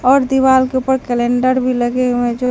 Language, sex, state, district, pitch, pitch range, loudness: Hindi, female, Bihar, Katihar, 255 Hz, 245-260 Hz, -15 LUFS